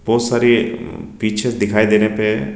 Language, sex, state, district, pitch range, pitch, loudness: Hindi, male, Rajasthan, Jaipur, 105-120 Hz, 110 Hz, -16 LUFS